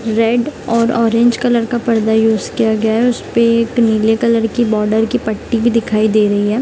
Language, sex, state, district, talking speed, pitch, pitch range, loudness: Hindi, female, Bihar, East Champaran, 215 wpm, 230 Hz, 220-235 Hz, -14 LUFS